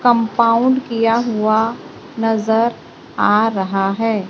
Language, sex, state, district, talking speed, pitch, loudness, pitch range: Hindi, female, Maharashtra, Gondia, 100 wpm, 225 Hz, -16 LUFS, 215-235 Hz